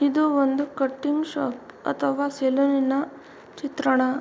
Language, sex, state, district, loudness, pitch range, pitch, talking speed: Kannada, female, Karnataka, Mysore, -24 LUFS, 265-290 Hz, 280 Hz, 100 wpm